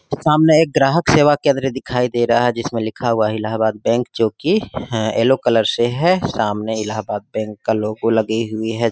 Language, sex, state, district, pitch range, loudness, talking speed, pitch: Hindi, male, Jharkhand, Sahebganj, 110-135 Hz, -17 LUFS, 210 wpm, 115 Hz